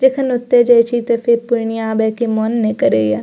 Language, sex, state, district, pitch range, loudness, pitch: Maithili, female, Bihar, Purnia, 220-240 Hz, -15 LUFS, 235 Hz